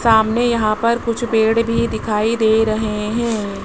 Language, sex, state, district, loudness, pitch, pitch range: Hindi, male, Rajasthan, Jaipur, -17 LUFS, 225 Hz, 215-230 Hz